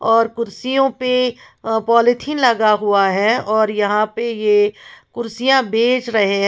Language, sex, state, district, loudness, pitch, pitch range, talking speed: Hindi, female, Uttar Pradesh, Lalitpur, -16 LUFS, 225 Hz, 210-245 Hz, 150 wpm